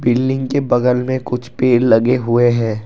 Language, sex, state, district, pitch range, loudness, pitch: Hindi, male, Assam, Kamrup Metropolitan, 120-130 Hz, -15 LUFS, 125 Hz